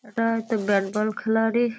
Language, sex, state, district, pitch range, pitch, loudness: Bengali, female, West Bengal, Kolkata, 210-230 Hz, 225 Hz, -24 LUFS